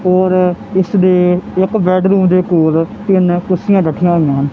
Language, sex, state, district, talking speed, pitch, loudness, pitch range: Punjabi, male, Punjab, Kapurthala, 145 wpm, 185 Hz, -12 LUFS, 175-190 Hz